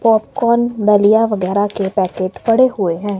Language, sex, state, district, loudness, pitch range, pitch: Hindi, male, Himachal Pradesh, Shimla, -15 LUFS, 195-225 Hz, 210 Hz